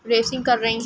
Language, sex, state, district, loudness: Hindi, female, Uttar Pradesh, Etah, -20 LUFS